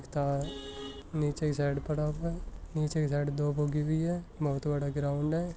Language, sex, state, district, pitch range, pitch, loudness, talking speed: Hindi, male, Rajasthan, Nagaur, 145-155 Hz, 150 Hz, -32 LUFS, 185 wpm